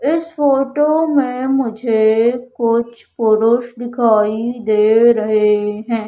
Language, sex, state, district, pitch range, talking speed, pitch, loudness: Hindi, female, Madhya Pradesh, Umaria, 220-260 Hz, 100 wpm, 235 Hz, -15 LUFS